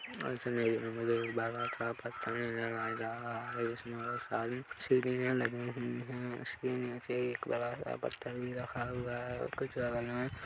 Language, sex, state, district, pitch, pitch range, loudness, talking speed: Hindi, male, Chhattisgarh, Kabirdham, 120 Hz, 115-125 Hz, -37 LUFS, 155 wpm